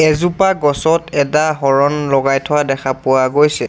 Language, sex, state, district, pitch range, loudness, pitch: Assamese, male, Assam, Sonitpur, 135-155 Hz, -14 LUFS, 145 Hz